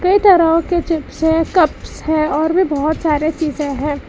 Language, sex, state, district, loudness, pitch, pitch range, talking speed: Hindi, female, Karnataka, Bangalore, -15 LUFS, 320 Hz, 305-335 Hz, 190 wpm